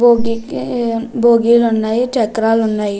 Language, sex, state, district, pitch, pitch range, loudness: Telugu, female, Andhra Pradesh, Krishna, 230 Hz, 225-235 Hz, -15 LUFS